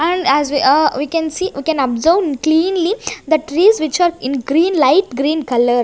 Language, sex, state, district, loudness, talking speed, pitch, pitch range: English, female, Chandigarh, Chandigarh, -15 LUFS, 195 wpm, 310 Hz, 275-335 Hz